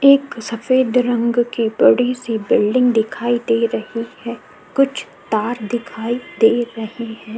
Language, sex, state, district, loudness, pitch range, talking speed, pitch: Hindi, female, Uttar Pradesh, Jyotiba Phule Nagar, -18 LUFS, 225-245 Hz, 140 wpm, 235 Hz